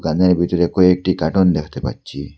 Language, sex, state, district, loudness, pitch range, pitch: Bengali, male, Assam, Hailakandi, -17 LUFS, 80-90 Hz, 90 Hz